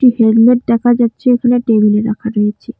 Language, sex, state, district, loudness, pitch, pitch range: Bengali, female, West Bengal, Cooch Behar, -12 LUFS, 230 Hz, 220-245 Hz